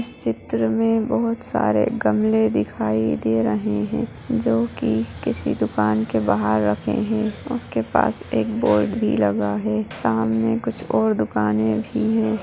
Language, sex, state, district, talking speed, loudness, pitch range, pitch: Hindi, female, Bihar, Muzaffarpur, 150 wpm, -21 LUFS, 105-115 Hz, 110 Hz